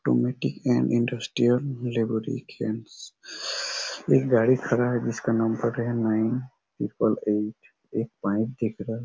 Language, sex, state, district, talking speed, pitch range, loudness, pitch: Hindi, male, Chhattisgarh, Raigarh, 115 wpm, 110-120 Hz, -26 LUFS, 115 Hz